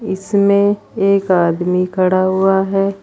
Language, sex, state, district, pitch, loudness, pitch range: Hindi, female, Uttar Pradesh, Saharanpur, 195 Hz, -15 LUFS, 185-200 Hz